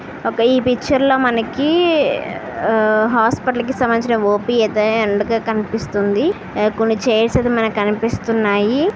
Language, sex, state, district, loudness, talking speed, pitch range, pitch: Telugu, female, Andhra Pradesh, Visakhapatnam, -16 LUFS, 115 wpm, 215-250 Hz, 225 Hz